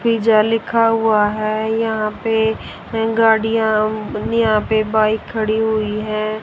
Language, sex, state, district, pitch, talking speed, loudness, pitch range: Hindi, female, Haryana, Rohtak, 220 Hz, 130 wpm, -17 LUFS, 215-225 Hz